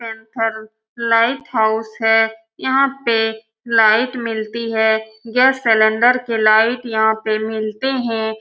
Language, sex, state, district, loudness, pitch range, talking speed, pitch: Hindi, female, Bihar, Saran, -17 LUFS, 220-235 Hz, 120 wpm, 225 Hz